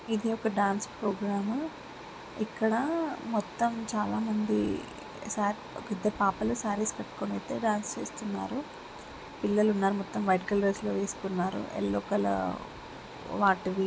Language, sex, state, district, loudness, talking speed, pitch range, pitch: Telugu, female, Andhra Pradesh, Srikakulam, -31 LUFS, 125 wpm, 190-220 Hz, 205 Hz